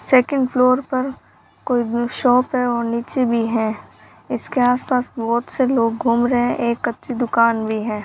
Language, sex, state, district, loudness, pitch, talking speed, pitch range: Hindi, female, Rajasthan, Bikaner, -19 LUFS, 245 Hz, 170 wpm, 235-255 Hz